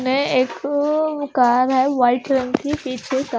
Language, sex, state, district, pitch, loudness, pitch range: Hindi, female, Himachal Pradesh, Shimla, 265 Hz, -19 LUFS, 255-285 Hz